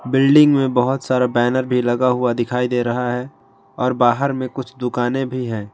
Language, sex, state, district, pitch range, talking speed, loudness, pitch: Hindi, male, Jharkhand, Garhwa, 120-130 Hz, 200 wpm, -18 LUFS, 125 Hz